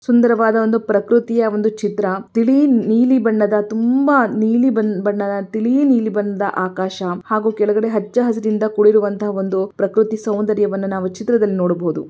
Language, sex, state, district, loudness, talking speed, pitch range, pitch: Kannada, female, Karnataka, Belgaum, -17 LUFS, 125 wpm, 200-230 Hz, 215 Hz